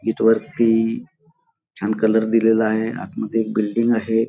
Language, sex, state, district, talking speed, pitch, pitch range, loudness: Marathi, male, Maharashtra, Chandrapur, 140 wpm, 115 Hz, 110-115 Hz, -19 LUFS